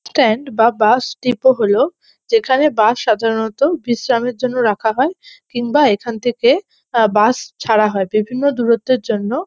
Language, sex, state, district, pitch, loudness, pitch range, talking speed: Bengali, female, West Bengal, North 24 Parganas, 240 Hz, -16 LUFS, 220-270 Hz, 145 wpm